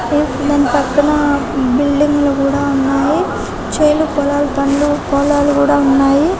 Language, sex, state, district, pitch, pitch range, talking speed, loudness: Telugu, female, Telangana, Karimnagar, 285 Hz, 280-295 Hz, 105 wpm, -14 LUFS